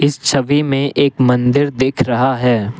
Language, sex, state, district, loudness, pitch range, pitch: Hindi, male, Assam, Kamrup Metropolitan, -15 LUFS, 125-140 Hz, 135 Hz